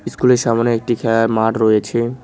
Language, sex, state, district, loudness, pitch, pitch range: Bengali, male, West Bengal, Cooch Behar, -16 LUFS, 115 Hz, 115-120 Hz